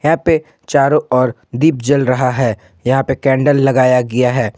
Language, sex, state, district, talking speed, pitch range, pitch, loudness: Hindi, male, Jharkhand, Ranchi, 185 wpm, 125-145 Hz, 130 Hz, -14 LUFS